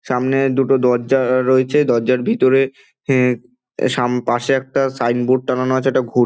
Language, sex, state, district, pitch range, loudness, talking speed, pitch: Bengali, male, West Bengal, Dakshin Dinajpur, 125-135 Hz, -17 LUFS, 145 wpm, 130 Hz